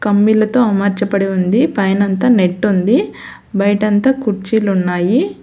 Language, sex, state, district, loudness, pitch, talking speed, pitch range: Telugu, female, Telangana, Hyderabad, -14 LUFS, 205 Hz, 120 wpm, 195-225 Hz